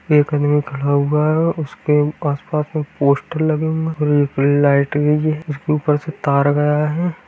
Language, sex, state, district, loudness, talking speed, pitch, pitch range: Hindi, male, Bihar, Darbhanga, -17 LUFS, 140 wpm, 150 Hz, 145-155 Hz